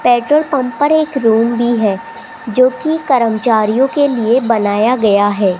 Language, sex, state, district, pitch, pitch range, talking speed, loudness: Hindi, female, Rajasthan, Jaipur, 235 Hz, 220-270 Hz, 160 wpm, -13 LUFS